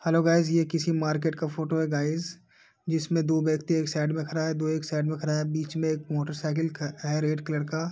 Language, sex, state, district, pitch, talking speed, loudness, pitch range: Hindi, male, Uttar Pradesh, Deoria, 160 Hz, 250 wpm, -28 LUFS, 155-165 Hz